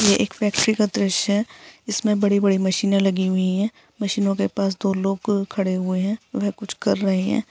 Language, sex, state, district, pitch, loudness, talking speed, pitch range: Hindi, female, Bihar, Jahanabad, 200 Hz, -21 LUFS, 200 wpm, 195-210 Hz